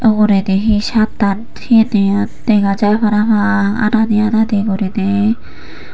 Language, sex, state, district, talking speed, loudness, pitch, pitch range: Chakma, female, Tripura, Unakoti, 100 wpm, -14 LUFS, 210 Hz, 200-220 Hz